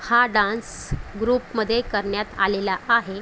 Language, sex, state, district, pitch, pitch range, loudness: Marathi, female, Maharashtra, Chandrapur, 220 Hz, 200-235 Hz, -22 LUFS